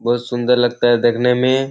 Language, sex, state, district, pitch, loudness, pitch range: Hindi, male, Bihar, Kishanganj, 120 Hz, -16 LUFS, 120-125 Hz